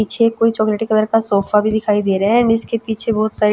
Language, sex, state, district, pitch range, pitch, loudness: Hindi, female, Chhattisgarh, Raipur, 210-225 Hz, 220 Hz, -16 LUFS